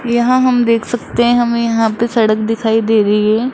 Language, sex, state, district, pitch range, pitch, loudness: Hindi, female, Rajasthan, Jaipur, 220-240 Hz, 230 Hz, -13 LUFS